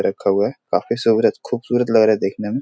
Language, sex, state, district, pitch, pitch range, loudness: Hindi, male, Bihar, Supaul, 110 Hz, 105-120 Hz, -18 LUFS